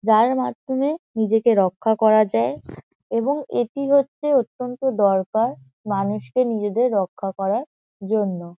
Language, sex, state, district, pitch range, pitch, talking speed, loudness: Bengali, female, West Bengal, Kolkata, 200-255 Hz, 220 Hz, 110 wpm, -21 LUFS